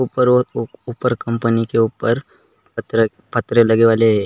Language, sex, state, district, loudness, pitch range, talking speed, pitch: Hindi, male, Maharashtra, Aurangabad, -17 LUFS, 115-125 Hz, 185 wpm, 115 Hz